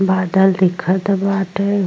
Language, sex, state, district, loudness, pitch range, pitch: Bhojpuri, female, Uttar Pradesh, Gorakhpur, -16 LUFS, 185-195 Hz, 190 Hz